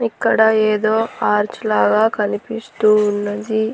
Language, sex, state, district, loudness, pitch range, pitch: Telugu, female, Andhra Pradesh, Annamaya, -17 LUFS, 205-220 Hz, 215 Hz